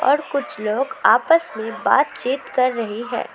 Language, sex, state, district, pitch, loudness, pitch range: Hindi, female, West Bengal, Alipurduar, 255 Hz, -20 LUFS, 225-280 Hz